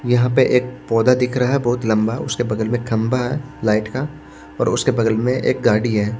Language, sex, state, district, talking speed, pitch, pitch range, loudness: Hindi, male, Maharashtra, Washim, 225 wpm, 120 Hz, 110-125 Hz, -18 LUFS